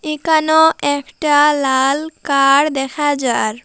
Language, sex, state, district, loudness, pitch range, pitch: Bengali, female, Assam, Hailakandi, -15 LUFS, 275-305 Hz, 290 Hz